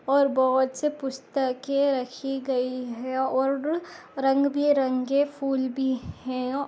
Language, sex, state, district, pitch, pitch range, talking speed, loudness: Hindi, female, Goa, North and South Goa, 270 Hz, 260-280 Hz, 115 wpm, -26 LUFS